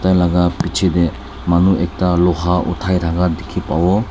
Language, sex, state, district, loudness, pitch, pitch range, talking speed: Nagamese, male, Nagaland, Dimapur, -16 LUFS, 90 Hz, 85-95 Hz, 160 wpm